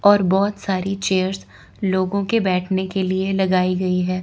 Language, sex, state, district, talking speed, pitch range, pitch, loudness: Hindi, female, Chandigarh, Chandigarh, 170 wpm, 185-195 Hz, 190 Hz, -20 LUFS